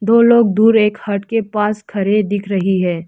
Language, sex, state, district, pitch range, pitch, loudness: Hindi, female, Arunachal Pradesh, Lower Dibang Valley, 200-220 Hz, 210 Hz, -15 LUFS